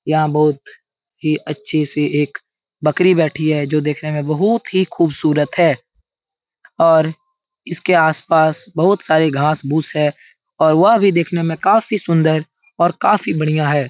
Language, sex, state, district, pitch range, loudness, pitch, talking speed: Hindi, male, Bihar, Jahanabad, 150-175 Hz, -16 LUFS, 155 Hz, 140 wpm